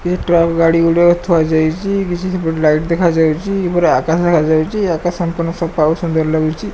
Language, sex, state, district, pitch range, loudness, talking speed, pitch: Odia, male, Odisha, Malkangiri, 160-175 Hz, -14 LUFS, 170 wpm, 170 Hz